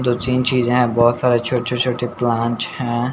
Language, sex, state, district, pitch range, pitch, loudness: Hindi, male, Bihar, Patna, 120-125 Hz, 125 Hz, -18 LUFS